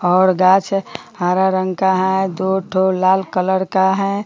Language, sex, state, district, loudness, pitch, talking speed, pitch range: Hindi, female, Bihar, Bhagalpur, -16 LUFS, 190 Hz, 170 wpm, 185-190 Hz